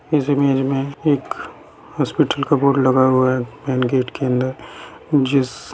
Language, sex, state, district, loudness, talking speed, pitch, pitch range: Hindi, male, Bihar, Sitamarhi, -18 LUFS, 165 wpm, 135 Hz, 130-140 Hz